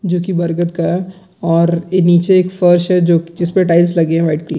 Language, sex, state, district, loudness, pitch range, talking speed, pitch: Hindi, male, Bihar, Gaya, -14 LUFS, 170-180 Hz, 260 wpm, 175 Hz